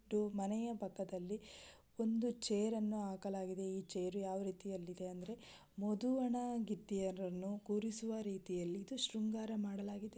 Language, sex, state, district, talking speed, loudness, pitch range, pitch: Kannada, female, Karnataka, Belgaum, 110 wpm, -42 LUFS, 190-220 Hz, 205 Hz